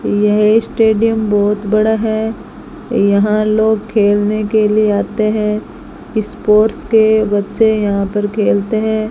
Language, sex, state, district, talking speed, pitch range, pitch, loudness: Hindi, female, Rajasthan, Bikaner, 125 wpm, 210-220 Hz, 215 Hz, -14 LUFS